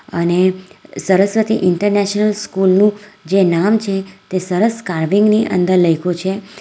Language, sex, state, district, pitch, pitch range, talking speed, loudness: Gujarati, female, Gujarat, Valsad, 195 Hz, 185-210 Hz, 125 wpm, -15 LUFS